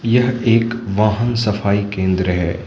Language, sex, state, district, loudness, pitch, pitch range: Hindi, male, Manipur, Imphal West, -17 LUFS, 105 Hz, 100-115 Hz